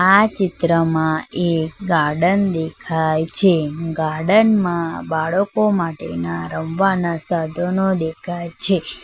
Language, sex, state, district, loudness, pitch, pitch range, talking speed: Gujarati, female, Gujarat, Valsad, -19 LUFS, 170 Hz, 160-190 Hz, 95 wpm